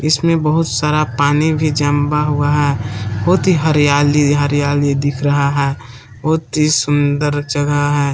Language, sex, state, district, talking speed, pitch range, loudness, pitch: Hindi, male, Jharkhand, Palamu, 140 wpm, 145-150 Hz, -15 LUFS, 145 Hz